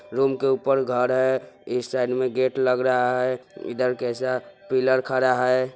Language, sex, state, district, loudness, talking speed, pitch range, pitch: Bajjika, male, Bihar, Vaishali, -23 LUFS, 175 wpm, 125-130 Hz, 130 Hz